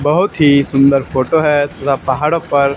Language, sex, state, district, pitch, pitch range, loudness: Hindi, male, Haryana, Charkhi Dadri, 140 Hz, 135-150 Hz, -13 LUFS